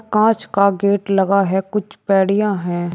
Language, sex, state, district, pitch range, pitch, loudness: Hindi, male, Uttar Pradesh, Shamli, 190-210 Hz, 200 Hz, -17 LUFS